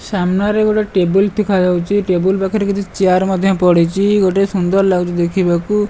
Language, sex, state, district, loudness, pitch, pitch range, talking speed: Odia, male, Odisha, Malkangiri, -14 LUFS, 190 Hz, 180-200 Hz, 140 wpm